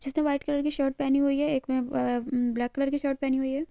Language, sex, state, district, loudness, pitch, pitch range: Hindi, female, Uttarakhand, Uttarkashi, -27 LUFS, 275 Hz, 260-285 Hz